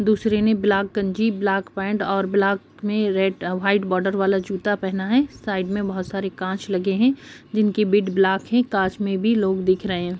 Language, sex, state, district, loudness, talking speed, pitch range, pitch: Hindi, female, Uttar Pradesh, Jyotiba Phule Nagar, -21 LUFS, 205 wpm, 190-210 Hz, 195 Hz